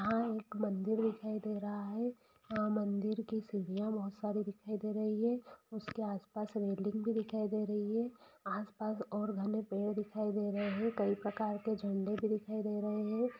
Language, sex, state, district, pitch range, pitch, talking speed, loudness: Hindi, female, Bihar, Saran, 205-220 Hz, 215 Hz, 185 wpm, -38 LUFS